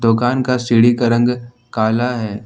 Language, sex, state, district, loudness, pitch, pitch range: Hindi, male, Jharkhand, Ranchi, -16 LUFS, 120 Hz, 115-125 Hz